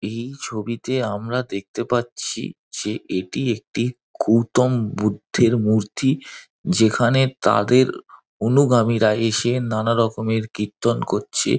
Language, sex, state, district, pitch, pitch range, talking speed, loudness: Bengali, male, West Bengal, Dakshin Dinajpur, 115 Hz, 110-125 Hz, 100 wpm, -21 LUFS